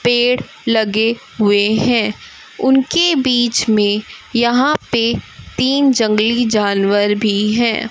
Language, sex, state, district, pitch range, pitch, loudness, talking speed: Hindi, female, Chhattisgarh, Raipur, 215-245 Hz, 230 Hz, -15 LUFS, 105 wpm